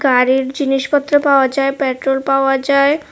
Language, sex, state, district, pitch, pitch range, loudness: Bengali, female, Tripura, West Tripura, 270 Hz, 265-280 Hz, -15 LUFS